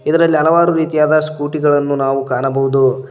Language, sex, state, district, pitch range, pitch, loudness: Kannada, male, Karnataka, Koppal, 135-155 Hz, 145 Hz, -14 LUFS